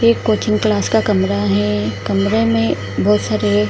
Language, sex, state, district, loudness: Hindi, female, Bihar, Kishanganj, -16 LUFS